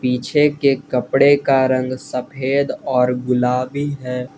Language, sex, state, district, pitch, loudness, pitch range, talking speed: Hindi, male, Jharkhand, Garhwa, 130 Hz, -18 LUFS, 125-140 Hz, 125 wpm